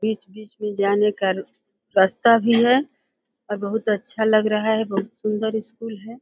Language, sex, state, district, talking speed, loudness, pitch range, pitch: Hindi, female, Uttar Pradesh, Deoria, 165 wpm, -21 LUFS, 205-230 Hz, 220 Hz